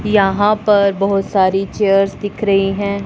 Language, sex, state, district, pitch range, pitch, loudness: Hindi, male, Punjab, Pathankot, 195-205 Hz, 200 Hz, -15 LUFS